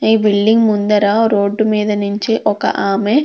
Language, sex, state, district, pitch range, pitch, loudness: Telugu, female, Andhra Pradesh, Krishna, 205-220 Hz, 210 Hz, -14 LUFS